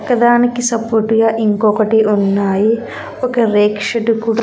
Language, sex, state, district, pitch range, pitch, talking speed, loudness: Telugu, female, Andhra Pradesh, Sri Satya Sai, 210-235 Hz, 225 Hz, 120 wpm, -14 LUFS